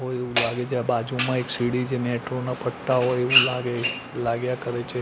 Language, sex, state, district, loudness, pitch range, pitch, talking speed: Gujarati, male, Gujarat, Gandhinagar, -23 LUFS, 120-125 Hz, 125 Hz, 165 wpm